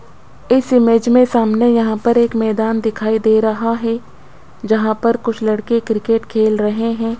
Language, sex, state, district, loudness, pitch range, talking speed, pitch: Hindi, female, Rajasthan, Jaipur, -15 LUFS, 220-235 Hz, 165 wpm, 225 Hz